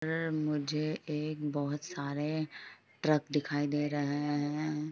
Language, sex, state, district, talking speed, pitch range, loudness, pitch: Hindi, female, Jharkhand, Sahebganj, 110 wpm, 145-155 Hz, -34 LUFS, 150 Hz